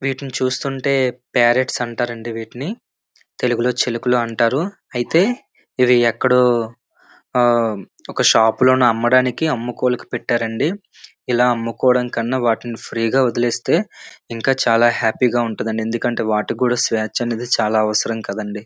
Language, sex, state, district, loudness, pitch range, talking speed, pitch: Telugu, male, Andhra Pradesh, Srikakulam, -18 LUFS, 115-130 Hz, 120 wpm, 120 Hz